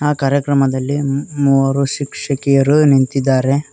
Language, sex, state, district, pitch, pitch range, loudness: Kannada, male, Karnataka, Koppal, 140 Hz, 135-145 Hz, -15 LUFS